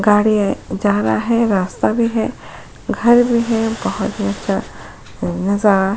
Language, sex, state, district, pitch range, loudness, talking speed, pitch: Hindi, female, Goa, North and South Goa, 195-230 Hz, -17 LUFS, 160 wpm, 210 Hz